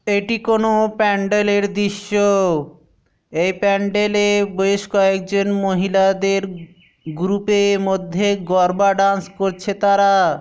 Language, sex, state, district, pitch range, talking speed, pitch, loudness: Bengali, male, West Bengal, Dakshin Dinajpur, 190-205 Hz, 105 wpm, 200 Hz, -17 LUFS